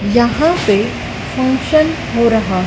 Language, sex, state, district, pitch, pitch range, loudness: Hindi, male, Madhya Pradesh, Dhar, 235 Hz, 210-270 Hz, -14 LUFS